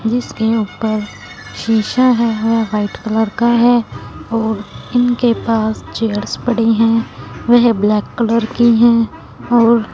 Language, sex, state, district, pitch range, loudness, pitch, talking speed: Hindi, female, Punjab, Fazilka, 220-235 Hz, -15 LUFS, 230 Hz, 125 wpm